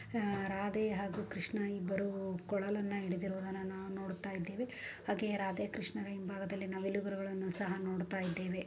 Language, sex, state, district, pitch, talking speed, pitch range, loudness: Kannada, female, Karnataka, Shimoga, 195 Hz, 130 wpm, 190-200 Hz, -39 LUFS